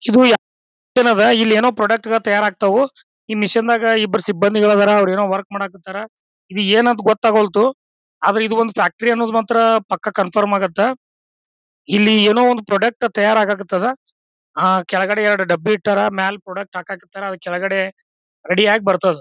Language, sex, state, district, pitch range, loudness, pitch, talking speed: Kannada, male, Karnataka, Bijapur, 200-225 Hz, -16 LUFS, 210 Hz, 155 wpm